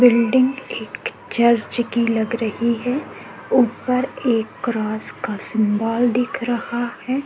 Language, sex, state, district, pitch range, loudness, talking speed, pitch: Hindi, female, Chhattisgarh, Korba, 230-250 Hz, -20 LUFS, 125 wpm, 235 Hz